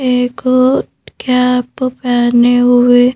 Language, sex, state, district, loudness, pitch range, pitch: Hindi, female, Madhya Pradesh, Bhopal, -12 LUFS, 245-255 Hz, 250 Hz